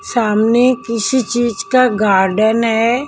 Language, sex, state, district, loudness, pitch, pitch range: Hindi, female, Delhi, New Delhi, -14 LUFS, 235 Hz, 220-255 Hz